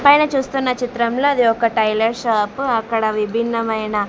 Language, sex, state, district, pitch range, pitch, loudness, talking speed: Telugu, female, Andhra Pradesh, Sri Satya Sai, 220-255 Hz, 230 Hz, -18 LUFS, 130 wpm